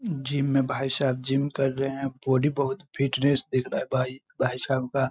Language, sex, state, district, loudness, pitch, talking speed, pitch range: Hindi, male, Bihar, Saharsa, -26 LUFS, 135 Hz, 210 wpm, 130-140 Hz